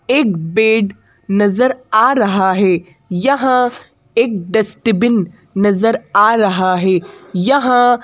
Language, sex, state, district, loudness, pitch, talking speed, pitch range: Hindi, female, Madhya Pradesh, Bhopal, -14 LUFS, 215 Hz, 110 wpm, 190-245 Hz